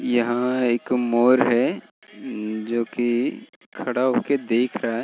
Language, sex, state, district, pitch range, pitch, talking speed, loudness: Hindi, male, Bihar, Gaya, 120-125 Hz, 120 Hz, 145 wpm, -22 LUFS